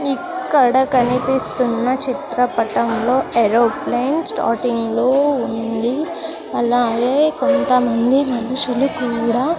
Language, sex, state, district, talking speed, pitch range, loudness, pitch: Telugu, female, Andhra Pradesh, Sri Satya Sai, 70 wpm, 235-275 Hz, -17 LUFS, 250 Hz